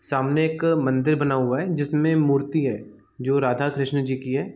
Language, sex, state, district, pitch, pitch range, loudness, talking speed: Hindi, male, Chhattisgarh, Bilaspur, 140 Hz, 130-155 Hz, -22 LUFS, 200 wpm